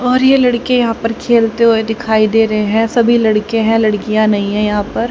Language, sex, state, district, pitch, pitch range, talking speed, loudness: Hindi, female, Haryana, Rohtak, 225 Hz, 215-235 Hz, 225 wpm, -13 LUFS